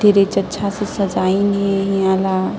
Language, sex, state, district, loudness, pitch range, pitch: Chhattisgarhi, female, Chhattisgarh, Sarguja, -17 LUFS, 190-200 Hz, 195 Hz